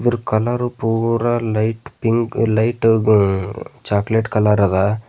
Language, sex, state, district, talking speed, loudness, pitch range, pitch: Kannada, male, Karnataka, Bidar, 120 wpm, -18 LUFS, 105-115 Hz, 115 Hz